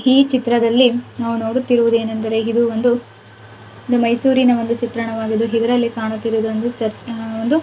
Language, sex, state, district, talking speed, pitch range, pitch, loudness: Kannada, female, Karnataka, Mysore, 65 wpm, 225-245 Hz, 230 Hz, -17 LUFS